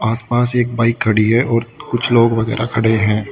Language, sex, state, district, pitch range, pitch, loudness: Hindi, male, Uttar Pradesh, Shamli, 110-120 Hz, 115 Hz, -15 LUFS